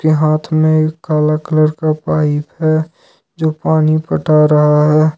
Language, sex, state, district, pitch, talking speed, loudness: Hindi, male, Jharkhand, Ranchi, 155 Hz, 150 wpm, -13 LUFS